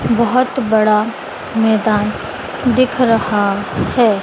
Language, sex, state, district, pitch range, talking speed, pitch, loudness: Hindi, female, Madhya Pradesh, Dhar, 210-245 Hz, 85 wpm, 225 Hz, -15 LUFS